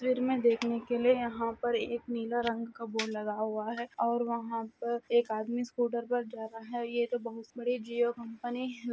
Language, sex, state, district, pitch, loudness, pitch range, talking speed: Hindi, female, Jharkhand, Sahebganj, 235 Hz, -33 LUFS, 230-240 Hz, 210 wpm